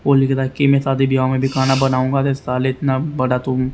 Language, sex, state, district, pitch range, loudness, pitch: Hindi, male, Haryana, Rohtak, 130-135 Hz, -17 LUFS, 135 Hz